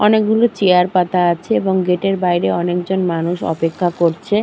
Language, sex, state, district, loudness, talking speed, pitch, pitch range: Bengali, female, West Bengal, Purulia, -16 LUFS, 205 wpm, 180 Hz, 175-195 Hz